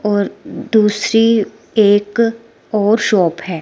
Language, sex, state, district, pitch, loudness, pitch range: Hindi, female, Himachal Pradesh, Shimla, 210 Hz, -15 LUFS, 205-225 Hz